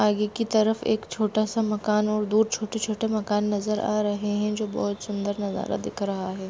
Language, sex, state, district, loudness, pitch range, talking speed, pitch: Hindi, female, Bihar, Jahanabad, -26 LUFS, 205-215 Hz, 205 wpm, 210 Hz